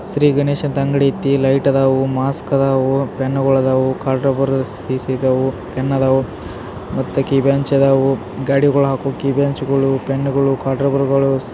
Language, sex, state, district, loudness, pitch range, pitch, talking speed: Kannada, male, Karnataka, Belgaum, -16 LUFS, 130-140 Hz, 135 Hz, 140 wpm